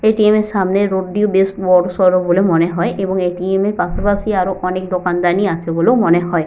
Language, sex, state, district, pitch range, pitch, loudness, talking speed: Bengali, female, West Bengal, Paschim Medinipur, 180-195 Hz, 185 Hz, -15 LUFS, 195 wpm